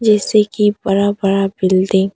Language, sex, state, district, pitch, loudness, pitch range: Hindi, female, Arunachal Pradesh, Longding, 200 Hz, -15 LUFS, 195-210 Hz